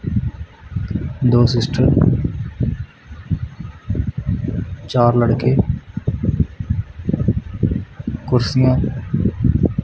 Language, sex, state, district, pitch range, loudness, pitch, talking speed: Punjabi, male, Punjab, Kapurthala, 100-125 Hz, -19 LUFS, 115 Hz, 30 wpm